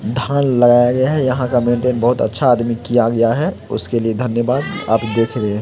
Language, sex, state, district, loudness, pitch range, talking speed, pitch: Hindi, male, Bihar, Samastipur, -16 LUFS, 115-130 Hz, 215 wpm, 120 Hz